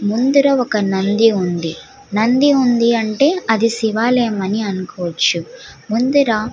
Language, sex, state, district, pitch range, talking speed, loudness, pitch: Telugu, female, Andhra Pradesh, Guntur, 200-245 Hz, 130 wpm, -16 LUFS, 220 Hz